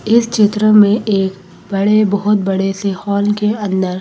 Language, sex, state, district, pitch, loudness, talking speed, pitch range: Hindi, female, Madhya Pradesh, Bhopal, 205 Hz, -14 LUFS, 165 wpm, 195-210 Hz